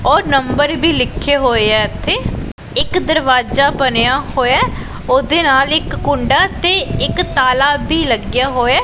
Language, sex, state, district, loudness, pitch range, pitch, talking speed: Punjabi, female, Punjab, Pathankot, -14 LUFS, 255-290 Hz, 270 Hz, 135 wpm